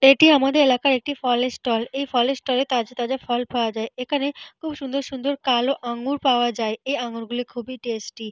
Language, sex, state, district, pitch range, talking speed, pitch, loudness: Bengali, female, Jharkhand, Jamtara, 240-275 Hz, 215 wpm, 255 Hz, -22 LUFS